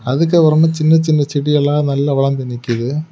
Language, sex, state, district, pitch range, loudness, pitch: Tamil, male, Tamil Nadu, Kanyakumari, 135-155 Hz, -14 LUFS, 145 Hz